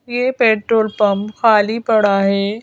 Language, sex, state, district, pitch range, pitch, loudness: Hindi, female, Madhya Pradesh, Bhopal, 205-230 Hz, 215 Hz, -15 LUFS